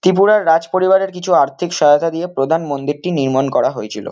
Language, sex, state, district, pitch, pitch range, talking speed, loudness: Bengali, male, West Bengal, Kolkata, 165 Hz, 145-185 Hz, 175 wpm, -15 LUFS